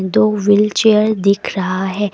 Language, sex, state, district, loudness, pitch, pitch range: Hindi, female, Assam, Kamrup Metropolitan, -14 LUFS, 205 Hz, 190-215 Hz